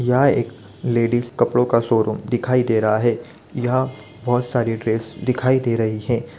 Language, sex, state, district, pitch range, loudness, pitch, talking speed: Hindi, male, Bihar, Sitamarhi, 115-125 Hz, -20 LUFS, 120 Hz, 180 wpm